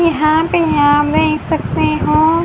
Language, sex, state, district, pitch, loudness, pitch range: Hindi, female, Haryana, Charkhi Dadri, 310 Hz, -14 LUFS, 300-330 Hz